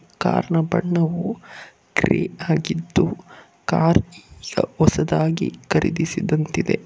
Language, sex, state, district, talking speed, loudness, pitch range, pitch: Kannada, male, Karnataka, Bangalore, 80 wpm, -21 LUFS, 155-180 Hz, 170 Hz